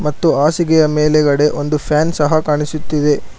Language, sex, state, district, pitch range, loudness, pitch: Kannada, male, Karnataka, Bangalore, 150-155 Hz, -14 LUFS, 150 Hz